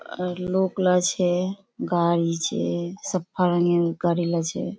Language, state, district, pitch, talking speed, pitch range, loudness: Surjapuri, Bihar, Kishanganj, 175 Hz, 115 wpm, 170-185 Hz, -24 LUFS